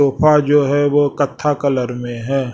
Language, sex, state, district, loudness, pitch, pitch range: Hindi, male, Chhattisgarh, Raipur, -16 LUFS, 140 Hz, 130-145 Hz